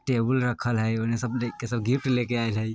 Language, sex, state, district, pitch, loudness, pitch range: Bajjika, male, Bihar, Vaishali, 120 Hz, -26 LUFS, 115-125 Hz